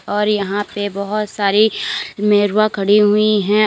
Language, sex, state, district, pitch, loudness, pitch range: Hindi, female, Uttar Pradesh, Lalitpur, 210 Hz, -16 LUFS, 205-215 Hz